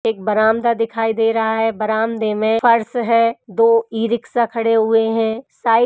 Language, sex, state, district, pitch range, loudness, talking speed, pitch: Hindi, female, Uttar Pradesh, Hamirpur, 220-230 Hz, -17 LUFS, 175 wpm, 225 Hz